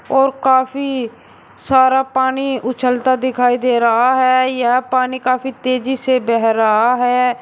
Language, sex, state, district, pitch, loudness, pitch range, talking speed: Hindi, male, Uttar Pradesh, Shamli, 255 Hz, -15 LUFS, 245-260 Hz, 135 wpm